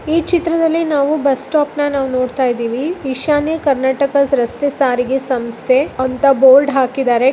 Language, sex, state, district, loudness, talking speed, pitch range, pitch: Kannada, female, Karnataka, Raichur, -15 LUFS, 145 wpm, 260-295 Hz, 275 Hz